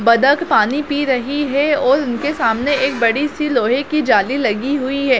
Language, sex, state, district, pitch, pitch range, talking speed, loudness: Hindi, female, Chhattisgarh, Bilaspur, 275 Hz, 250-290 Hz, 185 wpm, -16 LUFS